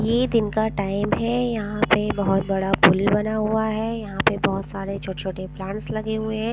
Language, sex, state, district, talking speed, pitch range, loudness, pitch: Hindi, female, Punjab, Pathankot, 210 wpm, 195-220 Hz, -22 LUFS, 210 Hz